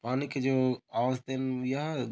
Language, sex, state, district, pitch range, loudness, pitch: Chhattisgarhi, male, Chhattisgarh, Korba, 125-135 Hz, -31 LUFS, 130 Hz